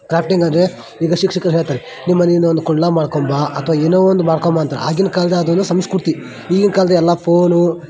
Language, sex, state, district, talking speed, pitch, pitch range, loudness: Kannada, male, Karnataka, Dharwad, 195 wpm, 170 Hz, 160-180 Hz, -15 LUFS